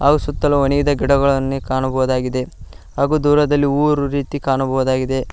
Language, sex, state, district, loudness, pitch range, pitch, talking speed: Kannada, male, Karnataka, Koppal, -17 LUFS, 130-145 Hz, 140 Hz, 110 wpm